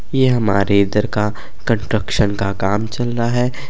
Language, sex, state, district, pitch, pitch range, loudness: Bhojpuri, male, Uttar Pradesh, Gorakhpur, 110 Hz, 100-120 Hz, -18 LUFS